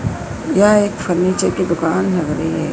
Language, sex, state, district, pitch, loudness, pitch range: Hindi, female, Madhya Pradesh, Dhar, 185 Hz, -16 LUFS, 175-195 Hz